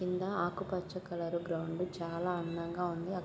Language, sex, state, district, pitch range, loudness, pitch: Telugu, female, Andhra Pradesh, Guntur, 170-180 Hz, -37 LUFS, 175 Hz